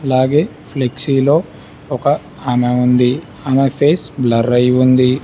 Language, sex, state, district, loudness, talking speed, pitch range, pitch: Telugu, male, Telangana, Hyderabad, -14 LUFS, 115 wpm, 125-140 Hz, 130 Hz